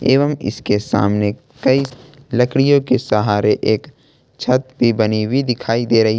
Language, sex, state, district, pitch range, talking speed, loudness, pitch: Hindi, male, Jharkhand, Ranchi, 110-135 Hz, 145 wpm, -17 LUFS, 125 Hz